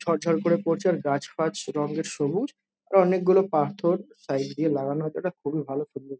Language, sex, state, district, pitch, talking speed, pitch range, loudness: Bengali, male, West Bengal, Jhargram, 160 Hz, 215 wpm, 145-180 Hz, -26 LUFS